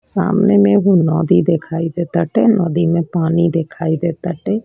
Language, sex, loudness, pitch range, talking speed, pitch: Bhojpuri, female, -15 LUFS, 165-195 Hz, 170 wpm, 170 Hz